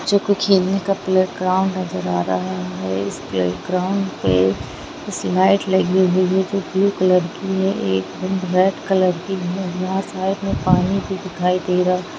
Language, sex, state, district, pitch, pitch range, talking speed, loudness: Hindi, female, Jharkhand, Jamtara, 185 Hz, 180-190 Hz, 160 wpm, -19 LUFS